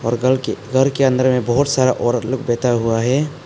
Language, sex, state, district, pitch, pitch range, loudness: Hindi, male, Arunachal Pradesh, Papum Pare, 130 Hz, 120-130 Hz, -17 LUFS